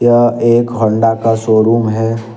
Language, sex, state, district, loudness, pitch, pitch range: Hindi, male, Jharkhand, Ranchi, -12 LUFS, 115 Hz, 110-120 Hz